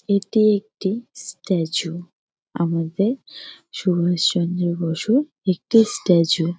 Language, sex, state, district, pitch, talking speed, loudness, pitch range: Bengali, female, West Bengal, Jalpaiguri, 180 Hz, 100 wpm, -20 LUFS, 170-210 Hz